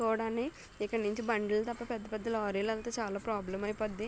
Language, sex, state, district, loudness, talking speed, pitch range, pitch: Telugu, female, Telangana, Nalgonda, -35 LUFS, 160 wpm, 210-230 Hz, 220 Hz